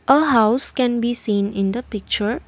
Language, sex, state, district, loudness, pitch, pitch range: English, female, Assam, Kamrup Metropolitan, -19 LUFS, 235 Hz, 210-250 Hz